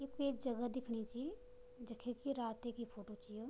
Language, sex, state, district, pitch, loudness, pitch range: Garhwali, female, Uttarakhand, Tehri Garhwal, 245 Hz, -45 LUFS, 230-275 Hz